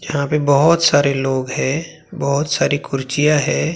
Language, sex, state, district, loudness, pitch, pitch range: Hindi, male, Maharashtra, Gondia, -17 LUFS, 145 Hz, 140-150 Hz